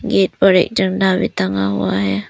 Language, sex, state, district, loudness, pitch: Hindi, female, Arunachal Pradesh, Papum Pare, -16 LUFS, 105 Hz